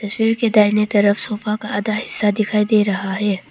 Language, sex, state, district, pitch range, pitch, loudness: Hindi, female, Arunachal Pradesh, Papum Pare, 205-215 Hz, 210 Hz, -18 LUFS